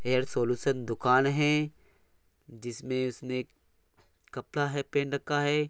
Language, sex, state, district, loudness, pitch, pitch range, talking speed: Hindi, male, Bihar, Begusarai, -29 LUFS, 130 Hz, 120-140 Hz, 95 wpm